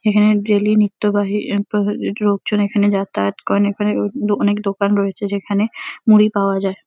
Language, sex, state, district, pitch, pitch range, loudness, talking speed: Bengali, female, West Bengal, Kolkata, 205 Hz, 200-210 Hz, -17 LUFS, 130 wpm